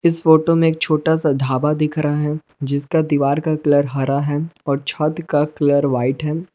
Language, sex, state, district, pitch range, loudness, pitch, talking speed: Hindi, male, Jharkhand, Palamu, 145-160 Hz, -18 LUFS, 150 Hz, 210 wpm